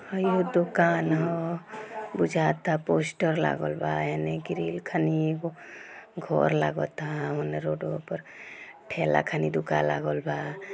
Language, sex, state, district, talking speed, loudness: Bhojpuri, female, Bihar, Gopalganj, 125 wpm, -28 LUFS